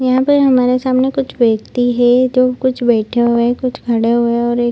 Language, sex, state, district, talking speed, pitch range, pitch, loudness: Hindi, female, Bihar, Lakhisarai, 255 wpm, 235-255 Hz, 245 Hz, -14 LUFS